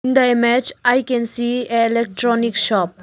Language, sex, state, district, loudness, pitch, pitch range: English, female, Arunachal Pradesh, Lower Dibang Valley, -17 LUFS, 235 Hz, 230-245 Hz